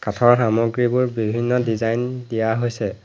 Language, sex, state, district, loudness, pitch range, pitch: Assamese, male, Assam, Hailakandi, -20 LUFS, 110-120 Hz, 115 Hz